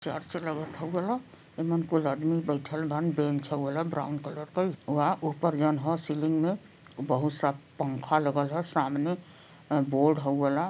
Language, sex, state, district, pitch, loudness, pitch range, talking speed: Bhojpuri, male, Uttar Pradesh, Varanasi, 155 Hz, -29 LUFS, 145-165 Hz, 170 wpm